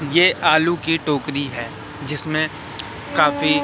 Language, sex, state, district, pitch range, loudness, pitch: Hindi, male, Madhya Pradesh, Katni, 145-155 Hz, -19 LUFS, 150 Hz